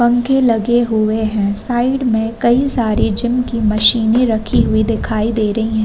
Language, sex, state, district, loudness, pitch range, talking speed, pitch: Hindi, female, Uttar Pradesh, Varanasi, -15 LUFS, 220-240 Hz, 175 wpm, 225 Hz